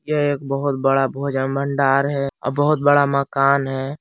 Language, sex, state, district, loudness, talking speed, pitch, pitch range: Hindi, male, Jharkhand, Palamu, -19 LUFS, 195 wpm, 140 Hz, 135-145 Hz